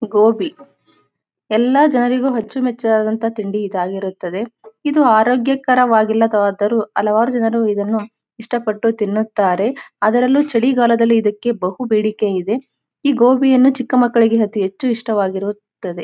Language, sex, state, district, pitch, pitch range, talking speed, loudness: Kannada, female, Karnataka, Mysore, 225 Hz, 210-250 Hz, 100 wpm, -16 LUFS